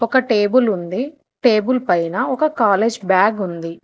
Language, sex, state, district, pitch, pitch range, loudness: Telugu, female, Telangana, Hyderabad, 220 Hz, 190-255 Hz, -17 LUFS